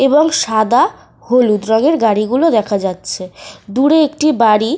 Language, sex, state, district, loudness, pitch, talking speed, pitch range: Bengali, female, Jharkhand, Sahebganj, -14 LUFS, 225 Hz, 140 wpm, 210-290 Hz